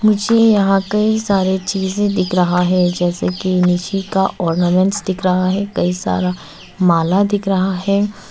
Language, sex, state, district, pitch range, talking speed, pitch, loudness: Hindi, female, Arunachal Pradesh, Papum Pare, 180-200 Hz, 160 wpm, 190 Hz, -16 LUFS